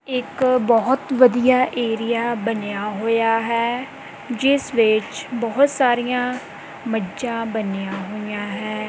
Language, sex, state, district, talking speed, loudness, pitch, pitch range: Punjabi, female, Punjab, Kapurthala, 100 wpm, -20 LUFS, 235 Hz, 215-255 Hz